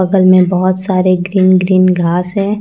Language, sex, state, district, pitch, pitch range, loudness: Hindi, female, Chandigarh, Chandigarh, 185 Hz, 185-190 Hz, -11 LUFS